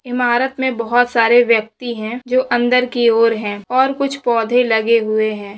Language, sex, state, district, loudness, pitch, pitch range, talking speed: Hindi, female, Maharashtra, Aurangabad, -16 LUFS, 240 Hz, 225-250 Hz, 170 wpm